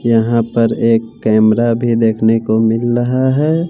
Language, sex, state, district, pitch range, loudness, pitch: Hindi, male, Bihar, West Champaran, 115-120 Hz, -14 LUFS, 115 Hz